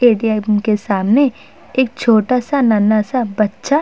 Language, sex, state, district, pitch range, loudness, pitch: Hindi, female, Uttar Pradesh, Budaun, 215-255 Hz, -15 LUFS, 225 Hz